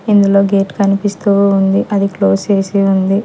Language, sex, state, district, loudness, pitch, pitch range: Telugu, female, Telangana, Hyderabad, -13 LUFS, 200 Hz, 195-200 Hz